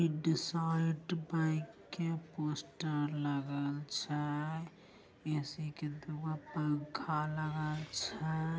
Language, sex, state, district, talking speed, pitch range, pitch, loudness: Angika, female, Bihar, Begusarai, 85 wpm, 150-165 Hz, 155 Hz, -38 LUFS